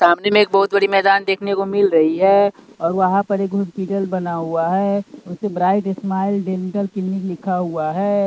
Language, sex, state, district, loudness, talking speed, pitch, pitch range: Hindi, male, Punjab, Pathankot, -18 LUFS, 195 wpm, 195 Hz, 185-200 Hz